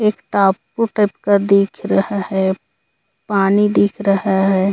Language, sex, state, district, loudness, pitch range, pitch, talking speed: Hindi, female, Chhattisgarh, Korba, -16 LUFS, 195-205 Hz, 200 Hz, 140 wpm